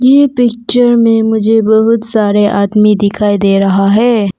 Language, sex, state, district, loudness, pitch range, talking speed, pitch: Hindi, female, Arunachal Pradesh, Papum Pare, -10 LUFS, 205-230 Hz, 150 wpm, 220 Hz